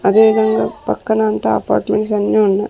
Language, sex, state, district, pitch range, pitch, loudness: Telugu, female, Andhra Pradesh, Sri Satya Sai, 210-220 Hz, 215 Hz, -15 LUFS